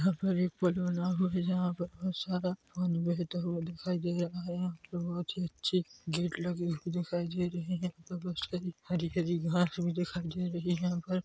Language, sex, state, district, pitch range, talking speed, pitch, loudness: Hindi, male, Chhattisgarh, Bilaspur, 175-180 Hz, 230 wpm, 175 Hz, -34 LUFS